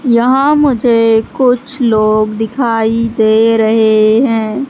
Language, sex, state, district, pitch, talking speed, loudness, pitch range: Hindi, female, Madhya Pradesh, Katni, 230 Hz, 100 wpm, -11 LUFS, 220-250 Hz